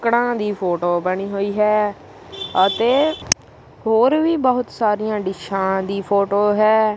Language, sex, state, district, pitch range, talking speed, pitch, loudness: Punjabi, female, Punjab, Kapurthala, 195-230 Hz, 130 wpm, 210 Hz, -19 LUFS